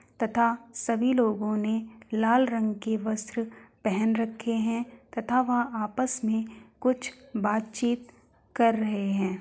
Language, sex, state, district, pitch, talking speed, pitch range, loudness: Hindi, female, Uttar Pradesh, Hamirpur, 225 Hz, 130 wpm, 220-240 Hz, -28 LUFS